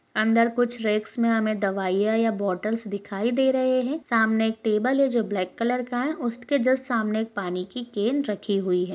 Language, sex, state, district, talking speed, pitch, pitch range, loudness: Hindi, female, Uttar Pradesh, Hamirpur, 210 wpm, 225 Hz, 205-245 Hz, -24 LUFS